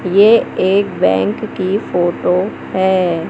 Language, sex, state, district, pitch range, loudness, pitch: Hindi, male, Madhya Pradesh, Katni, 175-205 Hz, -15 LUFS, 190 Hz